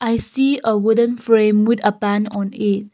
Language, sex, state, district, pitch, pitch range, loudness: English, female, Nagaland, Kohima, 220 Hz, 205-235 Hz, -17 LUFS